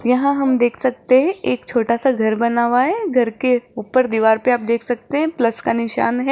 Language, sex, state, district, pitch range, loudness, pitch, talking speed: Hindi, female, Rajasthan, Jaipur, 235-255 Hz, -17 LUFS, 245 Hz, 235 wpm